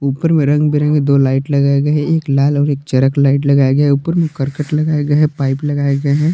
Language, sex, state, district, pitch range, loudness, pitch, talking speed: Hindi, male, Jharkhand, Palamu, 140-150 Hz, -14 LUFS, 145 Hz, 265 wpm